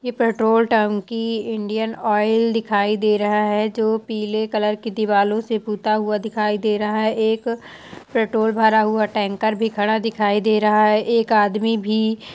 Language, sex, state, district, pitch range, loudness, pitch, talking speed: Hindi, female, Jharkhand, Jamtara, 210-225 Hz, -19 LUFS, 220 Hz, 180 wpm